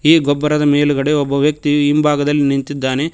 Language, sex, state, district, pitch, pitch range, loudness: Kannada, male, Karnataka, Koppal, 145 Hz, 145-150 Hz, -15 LUFS